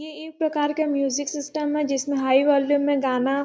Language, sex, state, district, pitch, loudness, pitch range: Hindi, female, Chhattisgarh, Sarguja, 285 Hz, -23 LUFS, 275-300 Hz